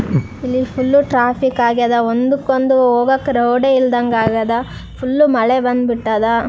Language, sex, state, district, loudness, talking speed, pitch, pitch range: Kannada, female, Karnataka, Raichur, -15 LUFS, 120 wpm, 245 Hz, 235-260 Hz